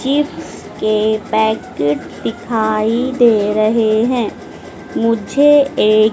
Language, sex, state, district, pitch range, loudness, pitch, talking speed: Hindi, female, Madhya Pradesh, Dhar, 215-240 Hz, -15 LUFS, 220 Hz, 90 wpm